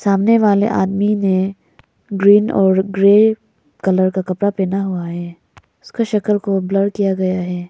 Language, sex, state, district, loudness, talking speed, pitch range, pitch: Hindi, female, Arunachal Pradesh, Lower Dibang Valley, -16 LUFS, 155 wpm, 185-205 Hz, 195 Hz